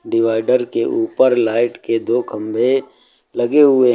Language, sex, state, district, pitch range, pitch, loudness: Hindi, male, Uttar Pradesh, Lucknow, 115-130 Hz, 120 Hz, -16 LUFS